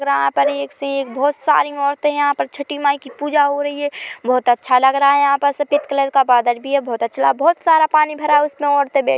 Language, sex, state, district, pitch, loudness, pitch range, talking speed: Hindi, female, Chhattisgarh, Korba, 280 Hz, -17 LUFS, 255-290 Hz, 275 wpm